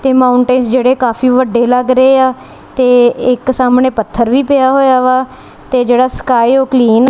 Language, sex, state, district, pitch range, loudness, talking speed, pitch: Punjabi, female, Punjab, Kapurthala, 245-260 Hz, -10 LUFS, 185 wpm, 255 Hz